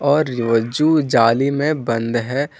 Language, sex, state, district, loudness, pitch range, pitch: Hindi, male, Jharkhand, Ranchi, -17 LUFS, 115-145 Hz, 135 Hz